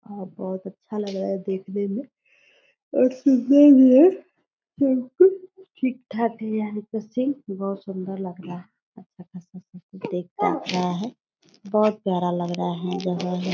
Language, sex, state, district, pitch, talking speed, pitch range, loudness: Hindi, female, Bihar, Purnia, 205 Hz, 145 wpm, 185-255 Hz, -22 LUFS